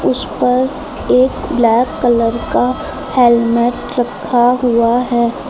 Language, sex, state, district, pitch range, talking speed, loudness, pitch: Hindi, female, Uttar Pradesh, Lucknow, 235-250 Hz, 110 wpm, -14 LUFS, 245 Hz